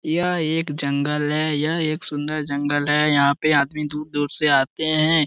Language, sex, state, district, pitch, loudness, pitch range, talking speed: Hindi, male, Bihar, Jamui, 150 Hz, -20 LUFS, 145-155 Hz, 180 wpm